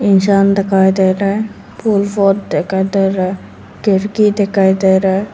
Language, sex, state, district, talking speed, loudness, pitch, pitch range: Hindi, female, Arunachal Pradesh, Lower Dibang Valley, 180 wpm, -14 LUFS, 195 Hz, 190-205 Hz